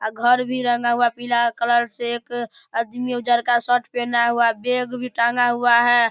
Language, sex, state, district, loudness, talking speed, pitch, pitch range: Maithili, male, Bihar, Darbhanga, -20 LUFS, 205 wpm, 240 Hz, 235-245 Hz